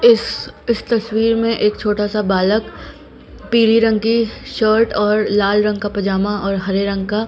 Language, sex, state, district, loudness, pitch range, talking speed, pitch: Hindi, female, Bihar, Patna, -17 LUFS, 205-225 Hz, 175 wpm, 210 Hz